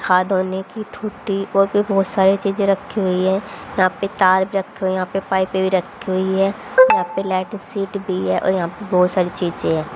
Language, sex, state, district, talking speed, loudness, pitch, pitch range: Hindi, female, Haryana, Rohtak, 230 wpm, -19 LUFS, 190 Hz, 185-195 Hz